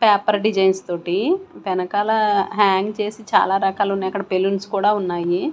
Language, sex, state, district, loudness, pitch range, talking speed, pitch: Telugu, female, Andhra Pradesh, Sri Satya Sai, -20 LUFS, 190-210 Hz, 140 wpm, 200 Hz